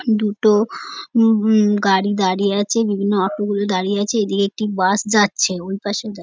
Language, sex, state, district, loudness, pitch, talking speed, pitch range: Bengali, female, West Bengal, North 24 Parganas, -18 LUFS, 205 Hz, 175 wpm, 200-215 Hz